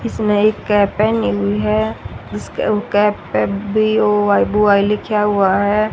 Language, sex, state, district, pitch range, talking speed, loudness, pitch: Hindi, female, Haryana, Rohtak, 170-210 Hz, 160 wpm, -16 LUFS, 205 Hz